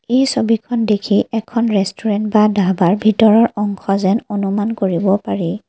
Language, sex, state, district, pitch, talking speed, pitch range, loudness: Assamese, female, Assam, Kamrup Metropolitan, 210 Hz, 135 wpm, 195-225 Hz, -16 LUFS